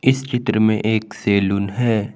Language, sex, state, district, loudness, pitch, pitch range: Hindi, male, Jharkhand, Garhwa, -19 LUFS, 110 Hz, 105-120 Hz